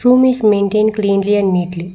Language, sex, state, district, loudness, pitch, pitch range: English, female, Karnataka, Bangalore, -14 LUFS, 205 Hz, 195-215 Hz